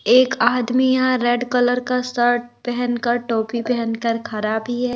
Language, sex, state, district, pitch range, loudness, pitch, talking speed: Hindi, female, Bihar, West Champaran, 235-250 Hz, -19 LUFS, 245 Hz, 155 wpm